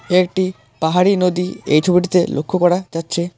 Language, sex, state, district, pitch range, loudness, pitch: Bengali, male, West Bengal, Alipurduar, 165-185 Hz, -17 LUFS, 180 Hz